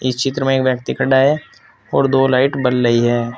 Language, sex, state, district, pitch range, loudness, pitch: Hindi, male, Uttar Pradesh, Saharanpur, 125-135 Hz, -16 LUFS, 130 Hz